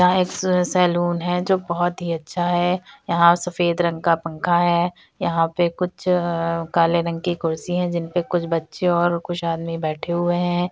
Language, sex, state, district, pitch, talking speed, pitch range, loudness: Hindi, female, Bihar, Madhepura, 175 Hz, 190 wpm, 170-180 Hz, -21 LUFS